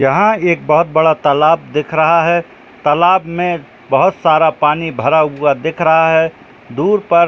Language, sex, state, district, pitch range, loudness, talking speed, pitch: Hindi, male, Jharkhand, Jamtara, 150-170 Hz, -13 LUFS, 175 wpm, 160 Hz